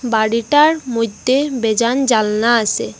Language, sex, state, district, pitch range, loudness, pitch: Bengali, female, Assam, Hailakandi, 220-265 Hz, -15 LUFS, 235 Hz